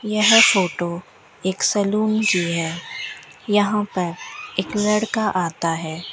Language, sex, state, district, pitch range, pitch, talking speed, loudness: Hindi, female, Rajasthan, Bikaner, 175-210 Hz, 190 Hz, 110 wpm, -20 LUFS